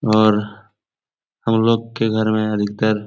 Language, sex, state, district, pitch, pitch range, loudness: Hindi, male, Uttar Pradesh, Etah, 110 Hz, 105-110 Hz, -18 LUFS